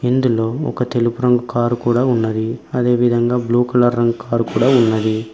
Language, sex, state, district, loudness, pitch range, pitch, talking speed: Telugu, male, Telangana, Mahabubabad, -17 LUFS, 115-125 Hz, 120 Hz, 155 wpm